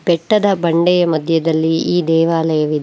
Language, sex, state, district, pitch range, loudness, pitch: Kannada, female, Karnataka, Bangalore, 160-175 Hz, -15 LUFS, 165 Hz